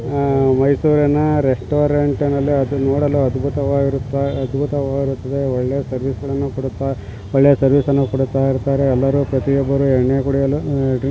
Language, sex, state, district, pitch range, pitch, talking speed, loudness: Kannada, male, Karnataka, Mysore, 135-140 Hz, 140 Hz, 130 wpm, -17 LUFS